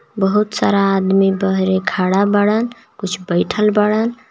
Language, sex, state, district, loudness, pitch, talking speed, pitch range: Bhojpuri, male, Jharkhand, Palamu, -16 LUFS, 200 Hz, 125 wpm, 190-210 Hz